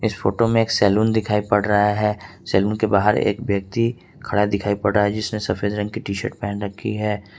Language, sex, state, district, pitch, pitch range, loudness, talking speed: Hindi, male, Jharkhand, Ranchi, 105 Hz, 100-110 Hz, -20 LUFS, 225 wpm